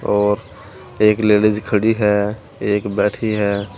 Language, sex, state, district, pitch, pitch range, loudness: Hindi, male, Uttar Pradesh, Saharanpur, 105 Hz, 105-110 Hz, -17 LUFS